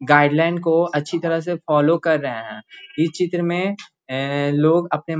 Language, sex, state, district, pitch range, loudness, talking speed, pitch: Magahi, male, Bihar, Gaya, 150-170 Hz, -20 LUFS, 175 wpm, 165 Hz